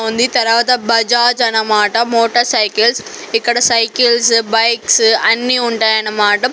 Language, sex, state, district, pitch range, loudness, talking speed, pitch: Telugu, female, Andhra Pradesh, Sri Satya Sai, 225-240 Hz, -12 LUFS, 100 wpm, 230 Hz